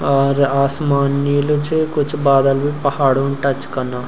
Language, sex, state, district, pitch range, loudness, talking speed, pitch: Garhwali, male, Uttarakhand, Uttarkashi, 140-145 Hz, -16 LUFS, 145 wpm, 140 Hz